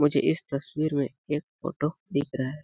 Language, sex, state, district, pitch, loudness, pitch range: Hindi, male, Chhattisgarh, Balrampur, 145 Hz, -29 LUFS, 140-155 Hz